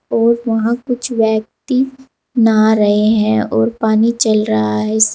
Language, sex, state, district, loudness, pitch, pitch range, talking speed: Hindi, female, Uttar Pradesh, Saharanpur, -14 LUFS, 220 Hz, 210-235 Hz, 140 wpm